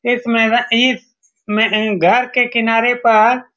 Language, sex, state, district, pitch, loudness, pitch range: Hindi, male, Bihar, Saran, 235 Hz, -14 LUFS, 225-245 Hz